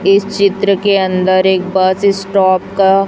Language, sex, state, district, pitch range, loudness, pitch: Hindi, female, Chhattisgarh, Raipur, 185-200 Hz, -12 LUFS, 195 Hz